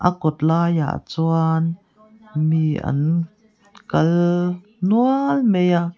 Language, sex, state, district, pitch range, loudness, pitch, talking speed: Mizo, female, Mizoram, Aizawl, 160-210 Hz, -20 LUFS, 175 Hz, 90 wpm